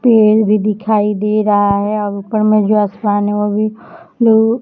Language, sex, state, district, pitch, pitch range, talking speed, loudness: Hindi, female, Jharkhand, Jamtara, 215 Hz, 205-215 Hz, 170 wpm, -14 LUFS